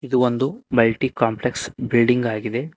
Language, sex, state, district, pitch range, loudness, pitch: Kannada, male, Karnataka, Koppal, 115-130 Hz, -20 LUFS, 125 Hz